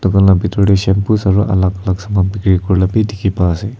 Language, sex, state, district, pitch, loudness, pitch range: Nagamese, male, Nagaland, Kohima, 95 Hz, -14 LUFS, 95-105 Hz